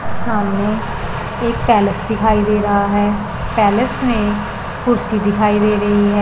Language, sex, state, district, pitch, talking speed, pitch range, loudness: Hindi, male, Punjab, Pathankot, 210 Hz, 135 wpm, 205-220 Hz, -16 LUFS